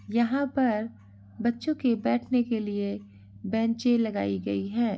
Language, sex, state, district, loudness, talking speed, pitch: Hindi, female, Bihar, East Champaran, -27 LUFS, 135 wpm, 225 Hz